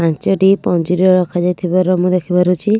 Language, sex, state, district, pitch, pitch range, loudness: Odia, female, Odisha, Nuapada, 180 Hz, 180-185 Hz, -14 LUFS